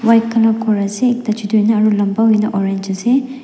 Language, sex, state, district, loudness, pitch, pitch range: Nagamese, female, Nagaland, Dimapur, -15 LUFS, 220 Hz, 205-230 Hz